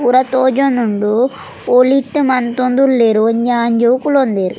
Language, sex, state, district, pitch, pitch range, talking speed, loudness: Tulu, female, Karnataka, Dakshina Kannada, 250 Hz, 235-265 Hz, 90 wpm, -13 LUFS